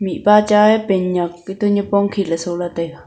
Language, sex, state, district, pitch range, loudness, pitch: Wancho, female, Arunachal Pradesh, Longding, 175-205 Hz, -16 LUFS, 195 Hz